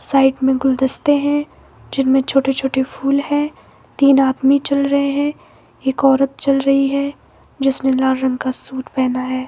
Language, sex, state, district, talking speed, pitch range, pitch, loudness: Hindi, male, Himachal Pradesh, Shimla, 165 wpm, 265-280 Hz, 270 Hz, -17 LUFS